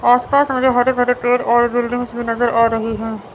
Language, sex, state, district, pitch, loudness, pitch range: Hindi, female, Chandigarh, Chandigarh, 245 Hz, -16 LUFS, 230-245 Hz